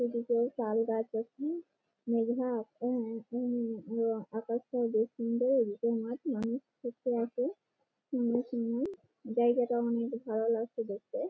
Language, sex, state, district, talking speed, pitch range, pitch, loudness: Bengali, female, West Bengal, Malda, 60 wpm, 230-245 Hz, 235 Hz, -33 LUFS